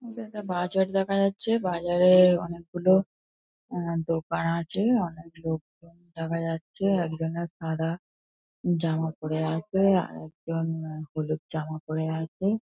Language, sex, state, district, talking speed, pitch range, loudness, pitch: Bengali, female, West Bengal, North 24 Parganas, 125 wpm, 160-185 Hz, -27 LUFS, 165 Hz